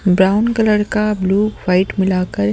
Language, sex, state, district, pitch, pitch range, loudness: Hindi, male, Delhi, New Delhi, 195 Hz, 185-210 Hz, -16 LUFS